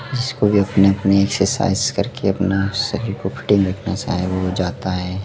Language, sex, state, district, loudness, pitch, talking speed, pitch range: Hindi, male, Madhya Pradesh, Dhar, -19 LUFS, 100 Hz, 170 wpm, 95-105 Hz